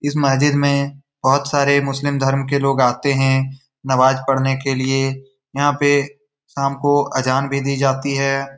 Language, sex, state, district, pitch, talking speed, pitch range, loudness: Hindi, male, Bihar, Saran, 140 Hz, 170 wpm, 135-140 Hz, -18 LUFS